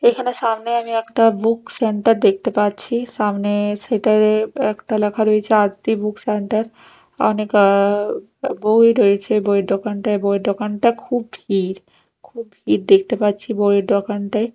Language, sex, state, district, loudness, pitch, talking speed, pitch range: Bengali, female, Odisha, Nuapada, -18 LUFS, 215 Hz, 135 wpm, 205-225 Hz